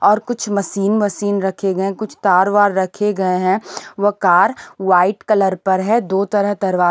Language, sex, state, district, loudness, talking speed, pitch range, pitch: Hindi, female, Punjab, Pathankot, -16 LUFS, 180 wpm, 190-205 Hz, 200 Hz